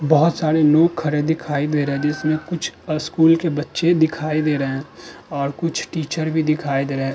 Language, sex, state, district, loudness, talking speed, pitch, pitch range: Hindi, male, Uttar Pradesh, Budaun, -20 LUFS, 210 wpm, 155 Hz, 150-160 Hz